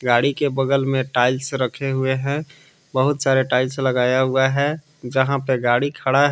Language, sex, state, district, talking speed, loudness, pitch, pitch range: Hindi, male, Jharkhand, Palamu, 180 wpm, -20 LUFS, 135 Hz, 130-140 Hz